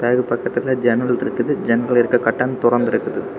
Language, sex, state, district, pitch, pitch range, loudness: Tamil, male, Tamil Nadu, Kanyakumari, 120 Hz, 120-125 Hz, -18 LUFS